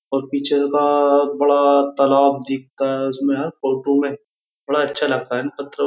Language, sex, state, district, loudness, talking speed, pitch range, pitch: Hindi, male, Uttar Pradesh, Jyotiba Phule Nagar, -18 LUFS, 165 wpm, 135-145 Hz, 140 Hz